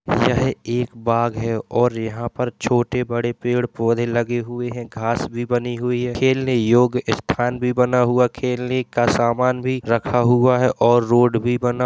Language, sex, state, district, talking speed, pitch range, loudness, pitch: Hindi, male, Uttar Pradesh, Jalaun, 170 wpm, 120-125 Hz, -19 LUFS, 120 Hz